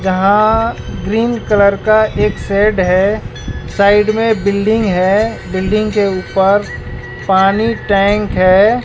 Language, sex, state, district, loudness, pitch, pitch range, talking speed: Hindi, male, Bihar, West Champaran, -13 LUFS, 205 Hz, 195-215 Hz, 115 wpm